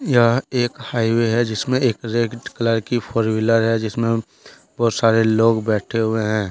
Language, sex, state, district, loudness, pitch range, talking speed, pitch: Hindi, male, Jharkhand, Deoghar, -19 LUFS, 110-120 Hz, 185 wpm, 115 Hz